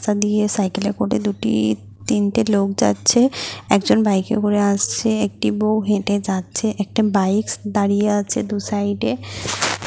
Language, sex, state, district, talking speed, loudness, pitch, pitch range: Bengali, female, West Bengal, Paschim Medinipur, 160 wpm, -19 LUFS, 205 Hz, 195-210 Hz